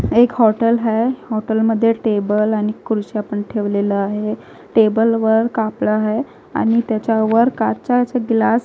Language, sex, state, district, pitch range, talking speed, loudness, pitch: Marathi, female, Maharashtra, Gondia, 215-230 Hz, 125 wpm, -17 LUFS, 220 Hz